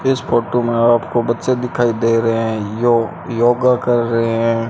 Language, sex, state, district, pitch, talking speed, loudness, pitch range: Hindi, male, Rajasthan, Bikaner, 120 Hz, 180 wpm, -16 LUFS, 115-120 Hz